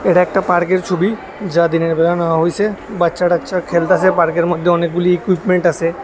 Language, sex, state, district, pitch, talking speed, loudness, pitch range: Bengali, male, Tripura, West Tripura, 175 Hz, 170 wpm, -15 LUFS, 170-185 Hz